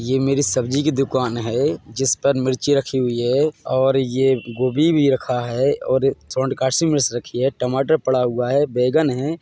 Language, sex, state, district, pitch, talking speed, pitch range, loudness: Hindi, male, Chhattisgarh, Bilaspur, 130 Hz, 190 wpm, 125-140 Hz, -19 LUFS